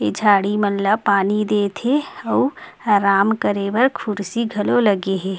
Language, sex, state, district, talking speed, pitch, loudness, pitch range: Chhattisgarhi, female, Chhattisgarh, Rajnandgaon, 165 wpm, 205 Hz, -18 LUFS, 200-230 Hz